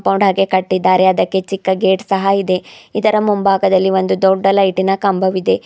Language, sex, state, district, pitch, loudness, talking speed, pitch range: Kannada, female, Karnataka, Bidar, 190 Hz, -14 LUFS, 140 wpm, 190-195 Hz